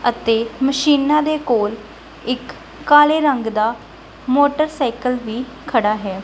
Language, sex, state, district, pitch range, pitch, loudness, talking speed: Punjabi, female, Punjab, Kapurthala, 225-290 Hz, 250 Hz, -17 LUFS, 115 wpm